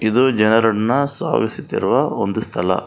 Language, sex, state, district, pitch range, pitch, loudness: Kannada, male, Karnataka, Bangalore, 110-140 Hz, 115 Hz, -18 LUFS